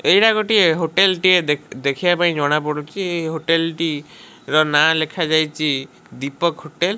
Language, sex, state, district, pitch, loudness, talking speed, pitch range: Odia, male, Odisha, Malkangiri, 160 Hz, -18 LUFS, 165 wpm, 150-175 Hz